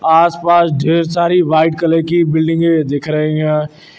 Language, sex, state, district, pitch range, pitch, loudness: Hindi, male, Uttar Pradesh, Lucknow, 155-170 Hz, 165 Hz, -13 LUFS